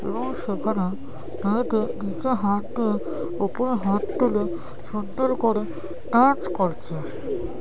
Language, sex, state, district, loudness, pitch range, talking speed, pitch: Bengali, male, West Bengal, North 24 Parganas, -25 LUFS, 200-245 Hz, 95 wpm, 215 Hz